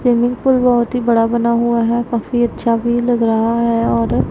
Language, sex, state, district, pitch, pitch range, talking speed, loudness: Hindi, female, Punjab, Pathankot, 235 Hz, 230-240 Hz, 210 wpm, -15 LUFS